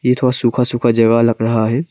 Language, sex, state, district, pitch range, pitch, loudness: Hindi, male, Arunachal Pradesh, Lower Dibang Valley, 115-125 Hz, 120 Hz, -15 LUFS